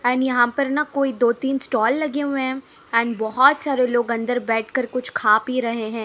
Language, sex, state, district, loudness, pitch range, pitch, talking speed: Hindi, female, Haryana, Charkhi Dadri, -20 LUFS, 230-270 Hz, 250 Hz, 220 wpm